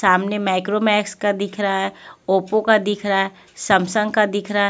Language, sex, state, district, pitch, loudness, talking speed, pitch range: Hindi, female, Punjab, Pathankot, 205 Hz, -19 LUFS, 230 wpm, 195-210 Hz